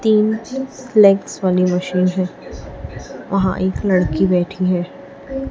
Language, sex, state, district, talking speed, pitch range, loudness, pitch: Hindi, female, Chhattisgarh, Raipur, 110 wpm, 180-220 Hz, -17 LUFS, 190 Hz